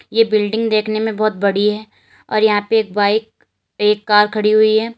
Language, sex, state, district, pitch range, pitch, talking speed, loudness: Hindi, female, Uttar Pradesh, Lalitpur, 210-220 Hz, 215 Hz, 215 wpm, -16 LUFS